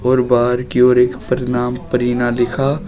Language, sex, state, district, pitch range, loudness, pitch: Hindi, male, Uttar Pradesh, Shamli, 120-125 Hz, -16 LUFS, 125 Hz